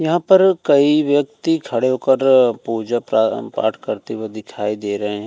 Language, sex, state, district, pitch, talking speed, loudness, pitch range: Hindi, male, Uttar Pradesh, Jyotiba Phule Nagar, 130 Hz, 160 wpm, -17 LUFS, 110-150 Hz